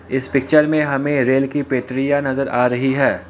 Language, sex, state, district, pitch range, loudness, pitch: Hindi, male, Assam, Kamrup Metropolitan, 130-145 Hz, -18 LUFS, 135 Hz